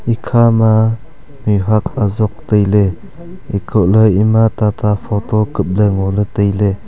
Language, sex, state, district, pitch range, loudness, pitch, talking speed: Wancho, male, Arunachal Pradesh, Longding, 105-110 Hz, -14 LUFS, 105 Hz, 120 wpm